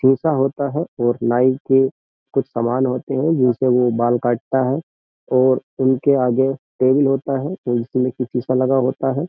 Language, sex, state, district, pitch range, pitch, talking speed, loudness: Hindi, male, Uttar Pradesh, Jyotiba Phule Nagar, 125-135 Hz, 130 Hz, 180 wpm, -18 LUFS